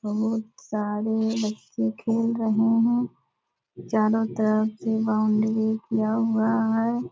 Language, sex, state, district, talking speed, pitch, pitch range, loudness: Hindi, female, Bihar, Purnia, 110 wpm, 220 Hz, 215-225 Hz, -24 LUFS